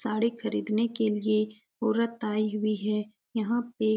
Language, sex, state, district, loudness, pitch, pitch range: Hindi, female, Uttar Pradesh, Etah, -29 LUFS, 215 Hz, 215-230 Hz